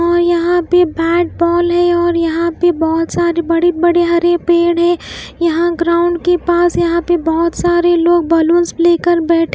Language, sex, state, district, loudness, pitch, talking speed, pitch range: Hindi, female, Bihar, West Champaran, -13 LUFS, 345 Hz, 175 wpm, 335-345 Hz